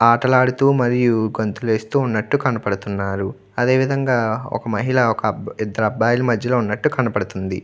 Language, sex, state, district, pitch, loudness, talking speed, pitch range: Telugu, male, Andhra Pradesh, Chittoor, 115 Hz, -19 LUFS, 120 wpm, 105-130 Hz